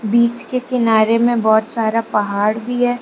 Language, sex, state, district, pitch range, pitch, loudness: Hindi, female, Arunachal Pradesh, Lower Dibang Valley, 220-245 Hz, 230 Hz, -16 LUFS